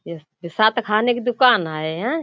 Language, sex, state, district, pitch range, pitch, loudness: Hindi, female, Uttar Pradesh, Budaun, 170-245 Hz, 215 Hz, -19 LUFS